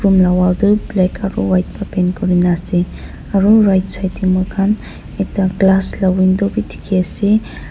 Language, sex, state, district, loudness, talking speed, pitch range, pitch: Nagamese, female, Nagaland, Dimapur, -15 LUFS, 170 wpm, 185-200 Hz, 190 Hz